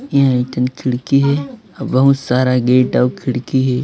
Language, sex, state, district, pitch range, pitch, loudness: Hindi, female, Chhattisgarh, Raipur, 125-140 Hz, 130 Hz, -15 LUFS